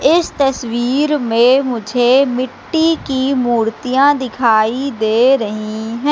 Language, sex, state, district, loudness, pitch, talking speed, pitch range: Hindi, female, Madhya Pradesh, Katni, -15 LUFS, 255 Hz, 110 wpm, 230-275 Hz